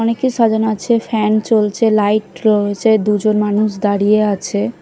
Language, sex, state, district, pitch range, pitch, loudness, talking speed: Bengali, female, Odisha, Khordha, 205-220 Hz, 215 Hz, -15 LUFS, 160 wpm